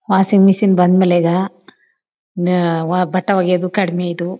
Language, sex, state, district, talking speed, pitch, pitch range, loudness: Kannada, female, Karnataka, Chamarajanagar, 110 wpm, 180 Hz, 175-190 Hz, -15 LUFS